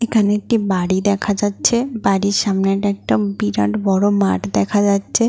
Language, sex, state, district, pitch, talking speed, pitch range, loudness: Bengali, female, West Bengal, Paschim Medinipur, 200 Hz, 145 wpm, 185-205 Hz, -17 LUFS